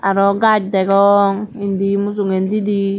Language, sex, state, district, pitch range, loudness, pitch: Chakma, female, Tripura, Dhalai, 195-205 Hz, -15 LUFS, 200 Hz